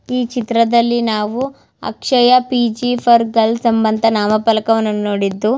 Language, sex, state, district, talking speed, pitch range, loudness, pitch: Kannada, female, Karnataka, Mysore, 130 wpm, 220-245 Hz, -15 LUFS, 230 Hz